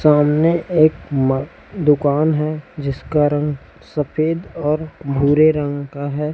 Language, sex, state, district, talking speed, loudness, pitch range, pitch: Hindi, male, Chhattisgarh, Raipur, 125 wpm, -18 LUFS, 145-155 Hz, 150 Hz